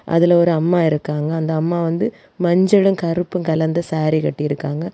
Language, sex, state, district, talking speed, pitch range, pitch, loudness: Tamil, female, Tamil Nadu, Kanyakumari, 155 wpm, 155-175 Hz, 165 Hz, -18 LUFS